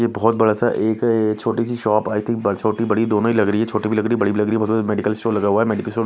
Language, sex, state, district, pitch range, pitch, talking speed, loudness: Hindi, male, Odisha, Nuapada, 105-115 Hz, 110 Hz, 345 wpm, -19 LUFS